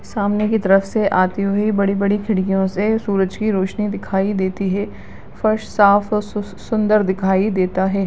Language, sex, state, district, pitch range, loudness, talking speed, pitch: Hindi, female, Bihar, Supaul, 190-210 Hz, -18 LUFS, 165 wpm, 200 Hz